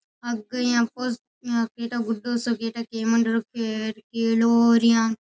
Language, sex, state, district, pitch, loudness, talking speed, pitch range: Rajasthani, female, Rajasthan, Nagaur, 230 Hz, -23 LUFS, 90 wpm, 225-240 Hz